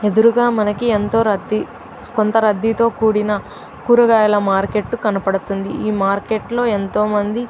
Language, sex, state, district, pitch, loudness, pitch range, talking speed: Telugu, female, Andhra Pradesh, Chittoor, 215 Hz, -17 LUFS, 205-225 Hz, 135 wpm